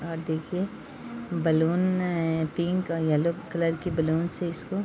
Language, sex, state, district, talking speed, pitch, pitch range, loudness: Hindi, female, Bihar, Sitamarhi, 150 wpm, 170 Hz, 165-185 Hz, -27 LUFS